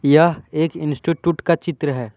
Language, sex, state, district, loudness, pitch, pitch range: Hindi, male, Jharkhand, Deoghar, -19 LUFS, 160 Hz, 145-170 Hz